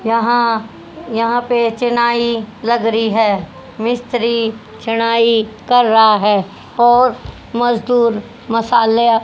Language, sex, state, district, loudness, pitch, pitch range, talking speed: Hindi, female, Haryana, Rohtak, -15 LUFS, 230 Hz, 225-240 Hz, 95 wpm